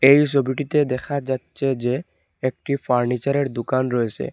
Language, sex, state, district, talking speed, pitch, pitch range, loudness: Bengali, male, Assam, Hailakandi, 125 wpm, 130 Hz, 125-140 Hz, -22 LUFS